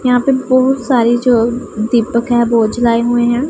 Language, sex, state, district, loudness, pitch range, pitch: Hindi, female, Punjab, Pathankot, -13 LUFS, 235-255 Hz, 240 Hz